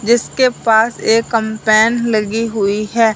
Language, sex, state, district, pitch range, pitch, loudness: Hindi, male, Punjab, Fazilka, 220-230 Hz, 225 Hz, -14 LUFS